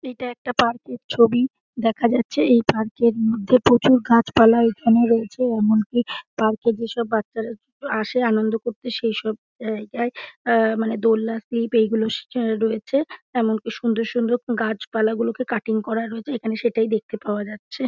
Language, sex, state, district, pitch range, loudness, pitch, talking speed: Bengali, female, West Bengal, Dakshin Dinajpur, 220-240 Hz, -21 LUFS, 230 Hz, 165 wpm